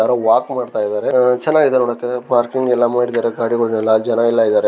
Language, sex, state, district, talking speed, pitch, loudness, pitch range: Kannada, male, Karnataka, Dharwad, 155 wpm, 120 Hz, -16 LUFS, 115-125 Hz